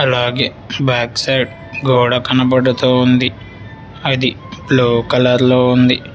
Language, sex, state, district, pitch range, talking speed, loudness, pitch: Telugu, male, Telangana, Hyderabad, 120-130 Hz, 100 wpm, -14 LUFS, 125 Hz